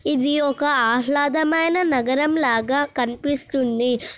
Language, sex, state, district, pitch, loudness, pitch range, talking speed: Telugu, female, Telangana, Nalgonda, 285 Hz, -20 LUFS, 245-295 Hz, 100 wpm